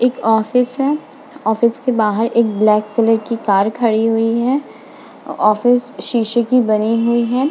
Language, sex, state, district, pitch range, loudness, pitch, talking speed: Hindi, female, Uttar Pradesh, Budaun, 220-250 Hz, -16 LUFS, 230 Hz, 160 wpm